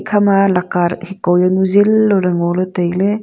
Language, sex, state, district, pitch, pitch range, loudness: Wancho, female, Arunachal Pradesh, Longding, 185 Hz, 180-200 Hz, -14 LUFS